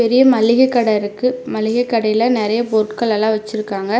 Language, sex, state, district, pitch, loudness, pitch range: Tamil, female, Tamil Nadu, Namakkal, 225 Hz, -16 LUFS, 215-240 Hz